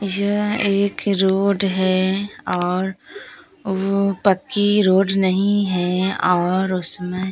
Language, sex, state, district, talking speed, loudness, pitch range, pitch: Hindi, female, Bihar, Katihar, 100 wpm, -19 LUFS, 185-200 Hz, 195 Hz